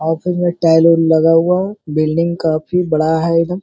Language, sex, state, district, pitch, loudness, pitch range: Hindi, male, Uttar Pradesh, Hamirpur, 165 Hz, -14 LUFS, 160-175 Hz